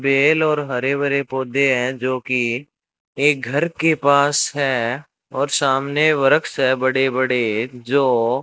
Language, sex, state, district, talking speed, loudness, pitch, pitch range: Hindi, male, Rajasthan, Bikaner, 150 wpm, -18 LUFS, 135 Hz, 130-145 Hz